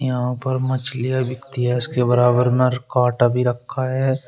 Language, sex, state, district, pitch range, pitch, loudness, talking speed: Hindi, male, Uttar Pradesh, Shamli, 125-130 Hz, 125 Hz, -20 LUFS, 155 wpm